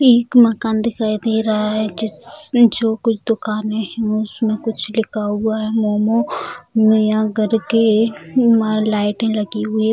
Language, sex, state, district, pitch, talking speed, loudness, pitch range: Hindi, female, Bihar, Jamui, 220 Hz, 140 wpm, -17 LUFS, 215-225 Hz